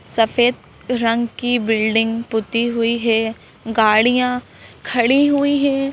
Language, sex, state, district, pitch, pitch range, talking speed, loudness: Hindi, female, Madhya Pradesh, Bhopal, 235 Hz, 225-250 Hz, 110 wpm, -17 LUFS